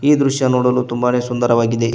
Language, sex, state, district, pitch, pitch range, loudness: Kannada, male, Karnataka, Koppal, 125 Hz, 120-130 Hz, -16 LUFS